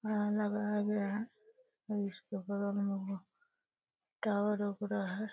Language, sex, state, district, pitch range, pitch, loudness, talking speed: Hindi, female, Uttar Pradesh, Deoria, 200-215 Hz, 210 Hz, -37 LUFS, 115 wpm